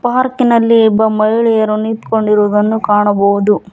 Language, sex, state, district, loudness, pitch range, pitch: Kannada, female, Karnataka, Bangalore, -12 LUFS, 210-225 Hz, 220 Hz